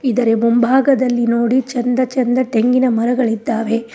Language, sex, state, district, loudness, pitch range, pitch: Kannada, female, Karnataka, Koppal, -15 LUFS, 230-255 Hz, 245 Hz